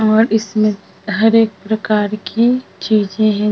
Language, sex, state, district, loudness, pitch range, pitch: Hindi, female, Bihar, Vaishali, -15 LUFS, 210-220 Hz, 215 Hz